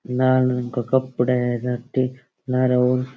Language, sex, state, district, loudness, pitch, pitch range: Rajasthani, male, Rajasthan, Churu, -21 LUFS, 125 Hz, 125-130 Hz